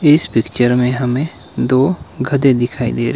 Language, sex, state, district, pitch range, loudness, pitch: Hindi, male, Himachal Pradesh, Shimla, 125-140 Hz, -15 LUFS, 125 Hz